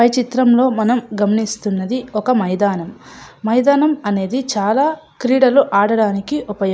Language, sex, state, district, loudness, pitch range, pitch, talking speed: Telugu, female, Andhra Pradesh, Anantapur, -16 LUFS, 205-255 Hz, 225 Hz, 105 wpm